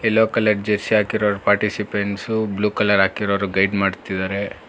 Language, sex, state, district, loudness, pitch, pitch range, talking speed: Kannada, male, Karnataka, Bangalore, -20 LUFS, 105 Hz, 100-105 Hz, 140 wpm